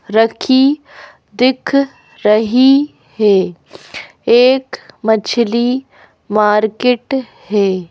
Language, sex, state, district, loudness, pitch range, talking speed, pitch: Hindi, female, Madhya Pradesh, Bhopal, -14 LUFS, 215-265 Hz, 60 wpm, 235 Hz